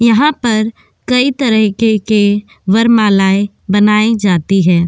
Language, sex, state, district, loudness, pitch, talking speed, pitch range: Hindi, female, Goa, North and South Goa, -12 LUFS, 215 Hz, 110 wpm, 200-230 Hz